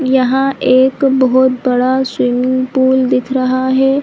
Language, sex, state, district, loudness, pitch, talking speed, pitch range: Hindi, female, Chhattisgarh, Bilaspur, -13 LUFS, 260 Hz, 135 wpm, 255-265 Hz